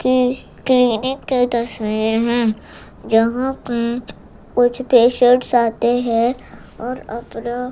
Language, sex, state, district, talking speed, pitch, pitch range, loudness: Hindi, female, Gujarat, Gandhinagar, 100 wpm, 240 Hz, 230-250 Hz, -18 LUFS